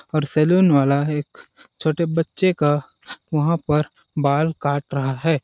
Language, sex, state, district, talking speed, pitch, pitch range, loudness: Hindi, male, Chhattisgarh, Balrampur, 155 wpm, 150 Hz, 145-165 Hz, -20 LUFS